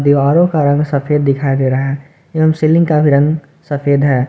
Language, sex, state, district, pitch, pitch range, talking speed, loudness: Hindi, male, Jharkhand, Garhwa, 145 Hz, 140-155 Hz, 210 wpm, -13 LUFS